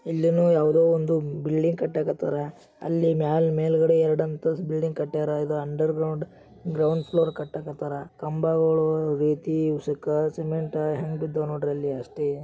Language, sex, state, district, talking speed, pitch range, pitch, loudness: Kannada, male, Karnataka, Gulbarga, 115 wpm, 150-160 Hz, 155 Hz, -25 LUFS